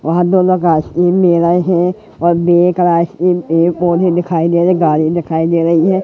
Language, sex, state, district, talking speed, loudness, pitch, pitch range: Hindi, male, Madhya Pradesh, Katni, 150 wpm, -12 LUFS, 175 Hz, 170-180 Hz